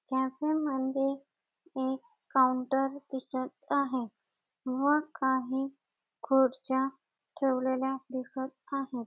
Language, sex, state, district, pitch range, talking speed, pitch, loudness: Marathi, female, Maharashtra, Dhule, 260-275 Hz, 80 wpm, 265 Hz, -31 LUFS